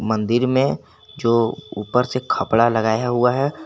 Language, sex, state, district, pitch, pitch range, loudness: Hindi, male, Jharkhand, Garhwa, 115 Hz, 110-125 Hz, -19 LUFS